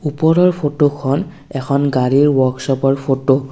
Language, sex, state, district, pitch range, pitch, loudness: Assamese, male, Assam, Kamrup Metropolitan, 135-145 Hz, 140 Hz, -15 LUFS